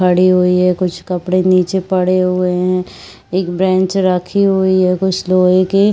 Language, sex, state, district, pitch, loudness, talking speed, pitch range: Chhattisgarhi, female, Chhattisgarh, Rajnandgaon, 185 Hz, -14 LUFS, 170 wpm, 180-190 Hz